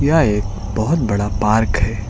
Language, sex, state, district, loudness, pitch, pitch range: Hindi, male, Uttar Pradesh, Lucknow, -18 LUFS, 105 Hz, 100-110 Hz